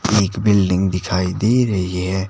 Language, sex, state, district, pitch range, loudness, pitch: Hindi, male, Himachal Pradesh, Shimla, 90-105 Hz, -18 LUFS, 95 Hz